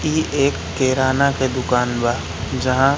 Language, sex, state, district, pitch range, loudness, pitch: Hindi, male, Madhya Pradesh, Katni, 125-140 Hz, -19 LUFS, 130 Hz